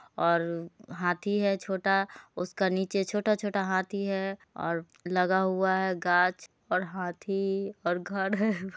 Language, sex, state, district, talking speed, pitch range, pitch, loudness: Hindi, female, Bihar, Muzaffarpur, 135 wpm, 180-195 Hz, 190 Hz, -29 LUFS